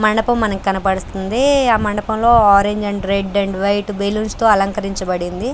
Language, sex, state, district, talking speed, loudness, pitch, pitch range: Telugu, female, Andhra Pradesh, Krishna, 140 wpm, -16 LUFS, 205 Hz, 195-220 Hz